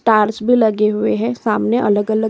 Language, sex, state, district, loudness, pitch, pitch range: Hindi, female, Chhattisgarh, Korba, -16 LUFS, 220 Hz, 210-230 Hz